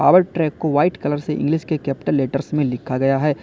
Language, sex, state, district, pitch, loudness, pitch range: Hindi, male, Uttar Pradesh, Lalitpur, 145 Hz, -20 LUFS, 135-155 Hz